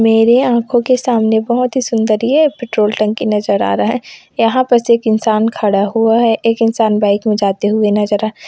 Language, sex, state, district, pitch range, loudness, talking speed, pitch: Hindi, female, Chhattisgarh, Kabirdham, 215-235 Hz, -13 LUFS, 200 wpm, 225 Hz